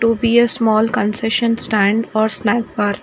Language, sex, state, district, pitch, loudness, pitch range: English, female, Karnataka, Bangalore, 225 Hz, -16 LUFS, 215-235 Hz